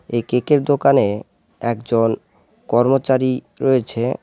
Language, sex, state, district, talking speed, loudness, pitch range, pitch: Bengali, male, West Bengal, Alipurduar, 100 wpm, -18 LUFS, 115-135 Hz, 125 Hz